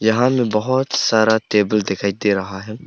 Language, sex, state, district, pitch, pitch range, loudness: Hindi, male, Arunachal Pradesh, Papum Pare, 110 Hz, 100-115 Hz, -18 LUFS